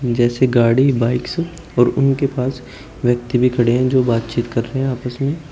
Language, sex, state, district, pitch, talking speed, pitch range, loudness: Hindi, male, Uttar Pradesh, Shamli, 125 Hz, 185 wpm, 120-135 Hz, -17 LUFS